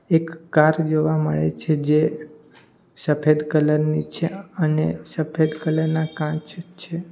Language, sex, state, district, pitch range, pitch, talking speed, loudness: Gujarati, male, Gujarat, Valsad, 150-160 Hz, 155 Hz, 135 wpm, -21 LUFS